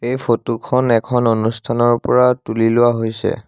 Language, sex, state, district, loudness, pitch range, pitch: Assamese, male, Assam, Sonitpur, -16 LUFS, 115-125 Hz, 120 Hz